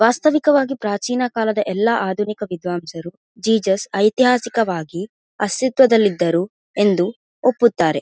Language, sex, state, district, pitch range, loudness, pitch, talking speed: Kannada, female, Karnataka, Dakshina Kannada, 190-240 Hz, -18 LUFS, 210 Hz, 80 wpm